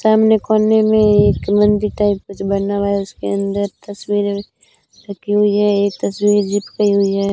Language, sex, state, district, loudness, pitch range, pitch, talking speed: Hindi, female, Rajasthan, Bikaner, -16 LUFS, 200-210 Hz, 205 Hz, 180 wpm